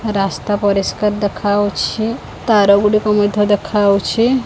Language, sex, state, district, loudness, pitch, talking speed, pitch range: Odia, female, Odisha, Khordha, -15 LUFS, 205 Hz, 95 wpm, 200-215 Hz